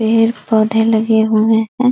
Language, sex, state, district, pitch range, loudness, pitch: Hindi, female, Bihar, East Champaran, 220-225 Hz, -14 LUFS, 220 Hz